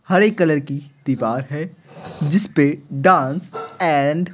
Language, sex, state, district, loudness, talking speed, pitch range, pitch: Hindi, male, Bihar, Patna, -19 LUFS, 140 wpm, 140-180 Hz, 155 Hz